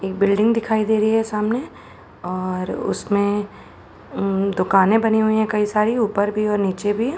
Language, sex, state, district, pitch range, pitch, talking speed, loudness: Hindi, female, Uttar Pradesh, Jalaun, 200-220 Hz, 210 Hz, 175 wpm, -20 LUFS